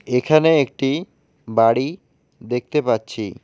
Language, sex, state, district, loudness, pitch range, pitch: Bengali, male, West Bengal, Alipurduar, -19 LUFS, 120-150 Hz, 135 Hz